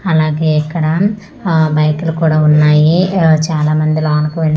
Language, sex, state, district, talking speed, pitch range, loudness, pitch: Telugu, female, Andhra Pradesh, Manyam, 130 wpm, 155-165 Hz, -12 LUFS, 155 Hz